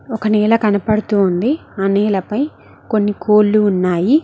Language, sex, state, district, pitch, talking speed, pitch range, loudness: Telugu, female, Telangana, Mahabubabad, 210 Hz, 115 wpm, 200-225 Hz, -16 LUFS